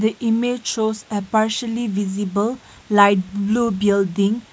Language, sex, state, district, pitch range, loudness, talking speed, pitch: English, female, Nagaland, Kohima, 200-230 Hz, -20 LUFS, 120 wpm, 215 Hz